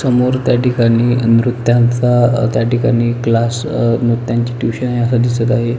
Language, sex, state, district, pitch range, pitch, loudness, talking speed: Marathi, male, Maharashtra, Pune, 115-120 Hz, 120 Hz, -14 LUFS, 135 wpm